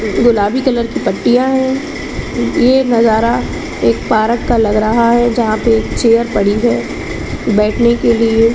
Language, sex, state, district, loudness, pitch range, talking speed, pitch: Hindi, female, Chhattisgarh, Bilaspur, -13 LUFS, 220-240 Hz, 155 wpm, 235 Hz